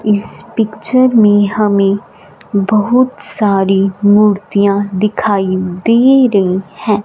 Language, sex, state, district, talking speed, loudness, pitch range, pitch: Hindi, female, Punjab, Fazilka, 95 wpm, -12 LUFS, 200-225 Hz, 205 Hz